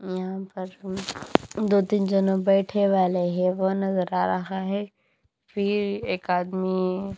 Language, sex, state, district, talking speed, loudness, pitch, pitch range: Hindi, female, Punjab, Kapurthala, 135 wpm, -25 LUFS, 190 Hz, 185-195 Hz